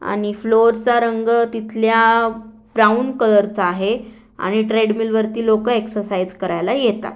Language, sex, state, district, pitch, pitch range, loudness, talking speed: Marathi, female, Maharashtra, Aurangabad, 225 Hz, 210-230 Hz, -17 LUFS, 135 wpm